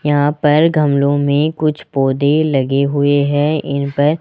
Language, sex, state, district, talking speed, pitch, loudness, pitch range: Hindi, male, Rajasthan, Jaipur, 155 wpm, 145 Hz, -15 LUFS, 140-150 Hz